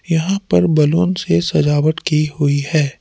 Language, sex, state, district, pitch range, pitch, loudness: Hindi, male, Jharkhand, Palamu, 145-165 Hz, 150 Hz, -16 LUFS